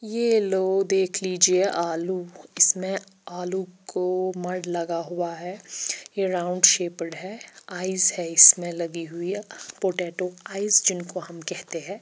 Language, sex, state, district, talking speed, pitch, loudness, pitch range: Hindi, female, Chandigarh, Chandigarh, 135 wpm, 185 Hz, -22 LUFS, 175-190 Hz